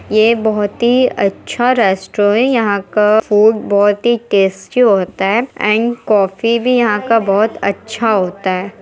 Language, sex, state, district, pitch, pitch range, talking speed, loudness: Hindi, female, Bihar, Muzaffarpur, 215 Hz, 200-235 Hz, 155 wpm, -13 LUFS